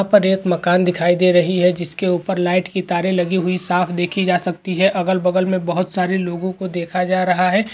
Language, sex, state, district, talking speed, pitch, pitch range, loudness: Hindi, male, West Bengal, Dakshin Dinajpur, 240 wpm, 180 Hz, 180-185 Hz, -18 LUFS